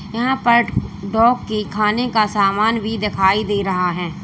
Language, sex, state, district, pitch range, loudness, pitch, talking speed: Hindi, female, Uttar Pradesh, Lalitpur, 195-230 Hz, -17 LUFS, 210 Hz, 170 wpm